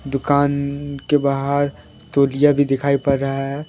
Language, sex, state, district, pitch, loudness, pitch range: Hindi, male, Jharkhand, Deoghar, 140 Hz, -19 LUFS, 135-145 Hz